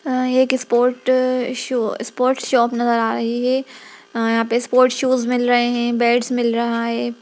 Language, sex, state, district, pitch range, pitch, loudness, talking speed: Hindi, female, Bihar, Darbhanga, 235-255 Hz, 245 Hz, -18 LUFS, 185 wpm